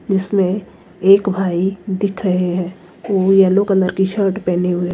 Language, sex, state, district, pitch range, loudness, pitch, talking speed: Hindi, female, Himachal Pradesh, Shimla, 180-195 Hz, -16 LUFS, 190 Hz, 160 wpm